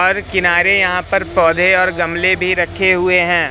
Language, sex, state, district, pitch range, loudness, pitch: Hindi, male, Madhya Pradesh, Katni, 175-185 Hz, -13 LUFS, 180 Hz